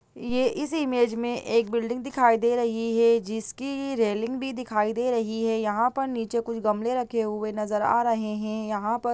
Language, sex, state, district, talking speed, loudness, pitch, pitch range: Hindi, female, Uttar Pradesh, Budaun, 205 wpm, -26 LUFS, 230 Hz, 220-245 Hz